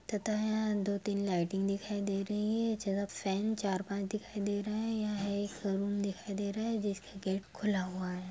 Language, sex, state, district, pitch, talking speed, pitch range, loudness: Hindi, female, Bihar, Sitamarhi, 200 Hz, 195 wpm, 195-210 Hz, -35 LUFS